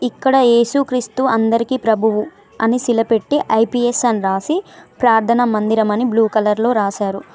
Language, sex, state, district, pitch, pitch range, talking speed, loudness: Telugu, female, Telangana, Mahabubabad, 230 Hz, 220-245 Hz, 130 wpm, -16 LUFS